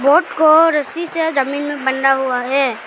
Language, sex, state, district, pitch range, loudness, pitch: Hindi, female, Arunachal Pradesh, Lower Dibang Valley, 265-315 Hz, -15 LUFS, 285 Hz